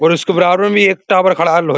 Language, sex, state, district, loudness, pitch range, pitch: Hindi, male, Uttar Pradesh, Muzaffarnagar, -12 LUFS, 170-195 Hz, 185 Hz